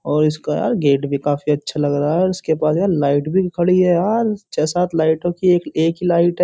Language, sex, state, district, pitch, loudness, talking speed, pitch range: Hindi, male, Uttar Pradesh, Jyotiba Phule Nagar, 165 Hz, -18 LUFS, 250 wpm, 150-180 Hz